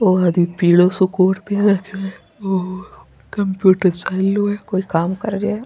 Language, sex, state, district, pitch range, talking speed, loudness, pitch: Rajasthani, female, Rajasthan, Churu, 185-200 Hz, 180 wpm, -17 LUFS, 190 Hz